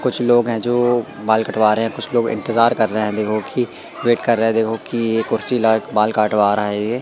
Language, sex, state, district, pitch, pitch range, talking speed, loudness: Hindi, male, Madhya Pradesh, Katni, 115 Hz, 110-120 Hz, 250 wpm, -18 LUFS